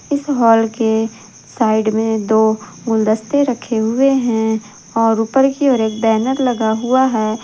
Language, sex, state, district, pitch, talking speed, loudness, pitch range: Hindi, female, Jharkhand, Garhwa, 225 Hz, 155 wpm, -16 LUFS, 220-255 Hz